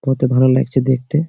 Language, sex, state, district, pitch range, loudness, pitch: Bengali, male, West Bengal, Malda, 130-135 Hz, -15 LUFS, 130 Hz